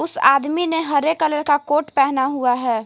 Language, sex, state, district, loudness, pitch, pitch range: Hindi, female, Jharkhand, Garhwa, -18 LUFS, 290 Hz, 270-315 Hz